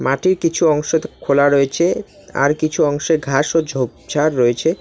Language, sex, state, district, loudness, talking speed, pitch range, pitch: Bengali, male, West Bengal, Alipurduar, -17 LUFS, 150 wpm, 140-165 Hz, 150 Hz